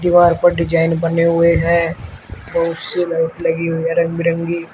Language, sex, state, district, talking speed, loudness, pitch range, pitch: Hindi, male, Uttar Pradesh, Shamli, 175 wpm, -16 LUFS, 165-170 Hz, 170 Hz